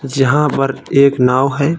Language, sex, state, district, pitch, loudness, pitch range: Hindi, male, Uttar Pradesh, Varanasi, 135 Hz, -13 LUFS, 135-145 Hz